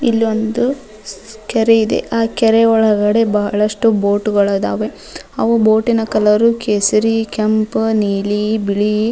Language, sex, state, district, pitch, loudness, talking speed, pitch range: Kannada, female, Karnataka, Dharwad, 220 Hz, -15 LUFS, 120 wpm, 210-225 Hz